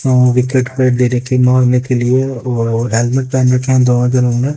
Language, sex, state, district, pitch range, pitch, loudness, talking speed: Hindi, male, Haryana, Jhajjar, 125-130 Hz, 125 Hz, -13 LUFS, 170 wpm